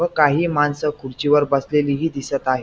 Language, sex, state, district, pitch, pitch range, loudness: Marathi, male, Maharashtra, Pune, 145 Hz, 140-150 Hz, -19 LUFS